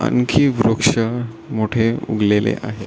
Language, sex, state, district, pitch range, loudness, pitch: Marathi, male, Maharashtra, Solapur, 110-125 Hz, -18 LUFS, 115 Hz